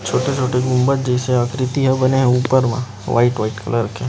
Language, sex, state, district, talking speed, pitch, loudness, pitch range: Chhattisgarhi, male, Chhattisgarh, Rajnandgaon, 160 wpm, 125 Hz, -17 LUFS, 120-130 Hz